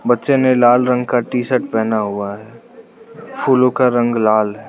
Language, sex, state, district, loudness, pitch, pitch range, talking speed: Hindi, male, Arunachal Pradesh, Lower Dibang Valley, -15 LUFS, 125 Hz, 110-130 Hz, 190 wpm